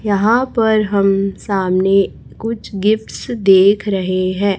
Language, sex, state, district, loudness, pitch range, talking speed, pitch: Hindi, female, Chhattisgarh, Raipur, -15 LUFS, 195-215 Hz, 115 wpm, 200 Hz